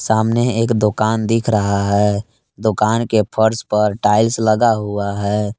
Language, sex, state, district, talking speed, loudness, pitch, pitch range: Hindi, male, Jharkhand, Palamu, 150 wpm, -16 LUFS, 110 Hz, 105-115 Hz